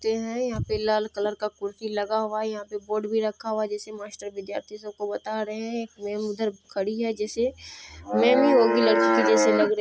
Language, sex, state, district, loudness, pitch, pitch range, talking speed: Hindi, female, Bihar, Purnia, -25 LUFS, 215 Hz, 205-220 Hz, 250 wpm